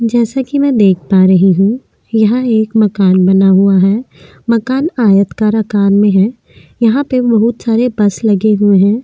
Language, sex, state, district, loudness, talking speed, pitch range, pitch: Hindi, female, Chhattisgarh, Korba, -11 LUFS, 180 wpm, 195-235 Hz, 215 Hz